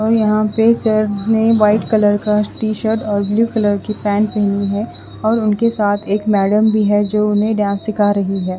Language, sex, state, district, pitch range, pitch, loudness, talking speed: Hindi, female, Odisha, Khordha, 205-220 Hz, 210 Hz, -15 LUFS, 210 wpm